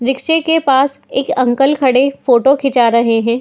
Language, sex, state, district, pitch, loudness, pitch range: Hindi, female, Uttar Pradesh, Muzaffarnagar, 265 Hz, -13 LUFS, 240-275 Hz